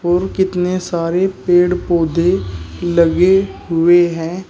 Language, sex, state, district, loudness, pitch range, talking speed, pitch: Hindi, male, Uttar Pradesh, Shamli, -15 LUFS, 165-185 Hz, 105 wpm, 175 Hz